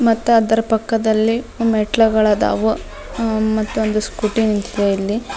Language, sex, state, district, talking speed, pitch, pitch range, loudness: Kannada, female, Karnataka, Dharwad, 90 wpm, 220 Hz, 215-225 Hz, -17 LUFS